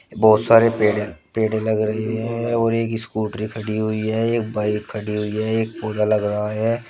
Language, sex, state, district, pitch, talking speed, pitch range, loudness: Hindi, male, Uttar Pradesh, Shamli, 110 Hz, 200 wpm, 105-115 Hz, -21 LUFS